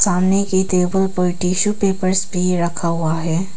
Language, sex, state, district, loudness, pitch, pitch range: Hindi, female, Arunachal Pradesh, Papum Pare, -18 LUFS, 185 Hz, 180-190 Hz